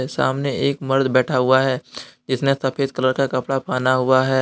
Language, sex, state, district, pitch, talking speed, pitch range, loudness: Hindi, male, Jharkhand, Deoghar, 130 Hz, 190 wpm, 130-135 Hz, -19 LUFS